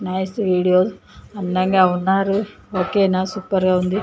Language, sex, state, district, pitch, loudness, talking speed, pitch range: Telugu, female, Andhra Pradesh, Chittoor, 185 Hz, -19 LUFS, 135 wpm, 185-195 Hz